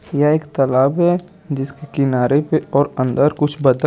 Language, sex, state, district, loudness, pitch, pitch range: Hindi, male, Chandigarh, Chandigarh, -17 LUFS, 145 Hz, 135-155 Hz